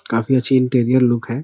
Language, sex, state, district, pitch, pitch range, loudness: Hindi, male, Bihar, Araria, 125 Hz, 120-130 Hz, -16 LUFS